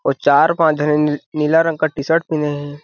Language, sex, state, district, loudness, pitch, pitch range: Hindi, male, Chhattisgarh, Balrampur, -16 LUFS, 150 Hz, 150-160 Hz